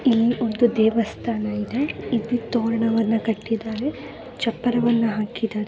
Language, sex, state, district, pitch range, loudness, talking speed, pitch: Kannada, female, Karnataka, Belgaum, 220-240 Hz, -22 LUFS, 105 wpm, 230 Hz